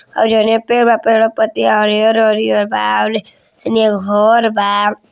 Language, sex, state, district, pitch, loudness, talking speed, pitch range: Hindi, male, Uttar Pradesh, Deoria, 215 Hz, -13 LUFS, 190 wpm, 205-225 Hz